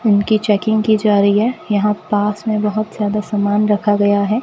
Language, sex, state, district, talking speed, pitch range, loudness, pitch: Hindi, female, Rajasthan, Bikaner, 205 wpm, 205-215 Hz, -16 LUFS, 210 Hz